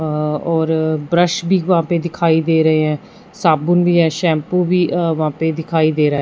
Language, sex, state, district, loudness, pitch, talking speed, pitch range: Hindi, male, Punjab, Fazilka, -16 LUFS, 165 Hz, 210 wpm, 155-175 Hz